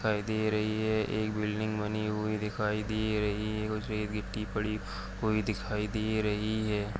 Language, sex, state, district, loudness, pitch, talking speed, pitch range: Hindi, male, Chhattisgarh, Jashpur, -32 LUFS, 105 Hz, 180 wpm, 105-110 Hz